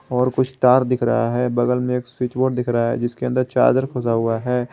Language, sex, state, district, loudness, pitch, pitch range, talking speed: Hindi, male, Jharkhand, Garhwa, -19 LUFS, 125 Hz, 120-130 Hz, 255 wpm